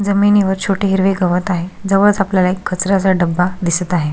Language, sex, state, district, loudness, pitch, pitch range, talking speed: Marathi, female, Maharashtra, Solapur, -15 LUFS, 190 Hz, 180-195 Hz, 175 wpm